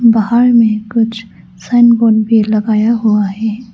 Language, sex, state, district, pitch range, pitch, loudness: Hindi, female, Arunachal Pradesh, Lower Dibang Valley, 215-230 Hz, 220 Hz, -11 LUFS